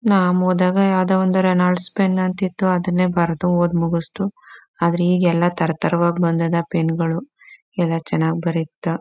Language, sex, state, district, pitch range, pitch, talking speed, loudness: Kannada, female, Karnataka, Chamarajanagar, 170-185 Hz, 180 Hz, 155 wpm, -19 LUFS